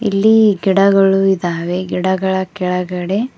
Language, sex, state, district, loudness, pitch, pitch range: Kannada, female, Karnataka, Koppal, -15 LUFS, 190 Hz, 180-200 Hz